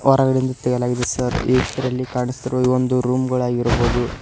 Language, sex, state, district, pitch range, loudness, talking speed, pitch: Kannada, male, Karnataka, Koppal, 125-130 Hz, -20 LUFS, 140 wpm, 125 Hz